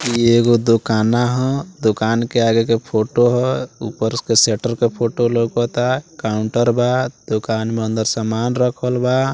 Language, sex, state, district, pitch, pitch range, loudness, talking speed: Bhojpuri, male, Bihar, Muzaffarpur, 120 Hz, 110-125 Hz, -17 LUFS, 155 wpm